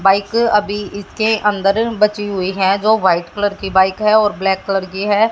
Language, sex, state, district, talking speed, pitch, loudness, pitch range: Hindi, female, Haryana, Jhajjar, 205 wpm, 205 Hz, -16 LUFS, 195-210 Hz